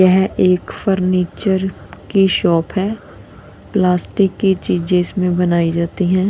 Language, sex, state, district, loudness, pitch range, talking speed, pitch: Hindi, female, Punjab, Kapurthala, -16 LUFS, 180-195 Hz, 125 wpm, 185 Hz